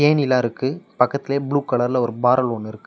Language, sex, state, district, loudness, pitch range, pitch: Tamil, male, Tamil Nadu, Namakkal, -20 LUFS, 120-140 Hz, 130 Hz